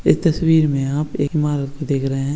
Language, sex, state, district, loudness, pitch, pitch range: Hindi, male, Bihar, Begusarai, -19 LUFS, 145 Hz, 140-155 Hz